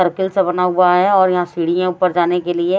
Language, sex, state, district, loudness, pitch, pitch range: Hindi, female, Haryana, Rohtak, -15 LUFS, 180 Hz, 175-185 Hz